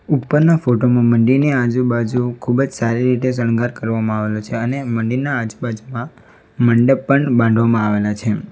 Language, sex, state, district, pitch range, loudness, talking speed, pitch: Gujarati, male, Gujarat, Valsad, 115-130 Hz, -17 LUFS, 155 wpm, 120 Hz